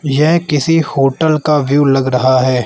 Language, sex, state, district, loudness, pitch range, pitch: Hindi, male, Arunachal Pradesh, Lower Dibang Valley, -12 LUFS, 135-155 Hz, 145 Hz